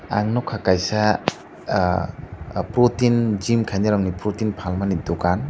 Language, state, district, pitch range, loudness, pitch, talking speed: Kokborok, Tripura, Dhalai, 90-110 Hz, -21 LUFS, 105 Hz, 120 wpm